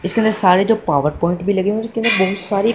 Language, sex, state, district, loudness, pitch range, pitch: Hindi, male, Punjab, Fazilka, -17 LUFS, 180-220 Hz, 200 Hz